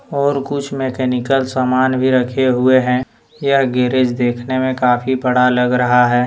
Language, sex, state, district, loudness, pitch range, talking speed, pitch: Hindi, male, Jharkhand, Deoghar, -16 LUFS, 125-130 Hz, 165 wpm, 130 Hz